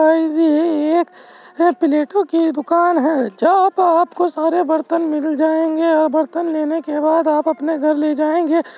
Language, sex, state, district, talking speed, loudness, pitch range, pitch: Hindi, male, Uttar Pradesh, Jyotiba Phule Nagar, 170 wpm, -16 LUFS, 310-335 Hz, 320 Hz